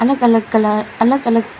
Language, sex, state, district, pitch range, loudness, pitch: Hindi, female, Arunachal Pradesh, Lower Dibang Valley, 220-240 Hz, -15 LUFS, 230 Hz